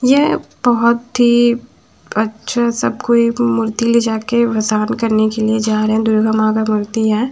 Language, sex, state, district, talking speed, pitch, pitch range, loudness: Hindi, female, Haryana, Charkhi Dadri, 170 wpm, 225 Hz, 220-235 Hz, -15 LUFS